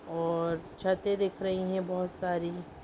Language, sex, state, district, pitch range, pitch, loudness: Hindi, female, Bihar, Gopalganj, 170-190 Hz, 180 Hz, -32 LUFS